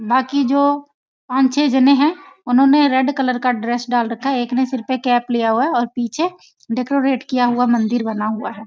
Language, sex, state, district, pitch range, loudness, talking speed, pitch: Hindi, female, Bihar, Sitamarhi, 240-275 Hz, -17 LUFS, 220 wpm, 255 Hz